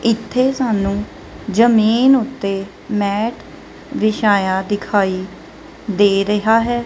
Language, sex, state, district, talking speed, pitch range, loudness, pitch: Punjabi, female, Punjab, Kapurthala, 85 wpm, 200-230 Hz, -17 LUFS, 210 Hz